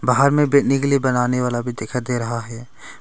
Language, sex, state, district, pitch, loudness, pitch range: Hindi, male, Arunachal Pradesh, Longding, 125 Hz, -19 LUFS, 120-135 Hz